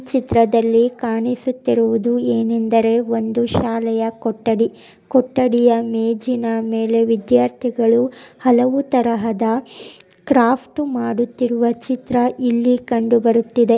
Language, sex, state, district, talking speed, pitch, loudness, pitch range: Kannada, female, Karnataka, Mysore, 75 wpm, 235 Hz, -17 LUFS, 230-245 Hz